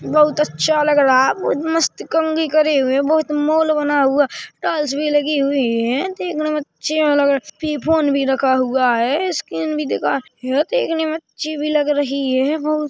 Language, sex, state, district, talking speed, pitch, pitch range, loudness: Hindi, male, Chhattisgarh, Rajnandgaon, 200 wpm, 295 Hz, 275-310 Hz, -18 LUFS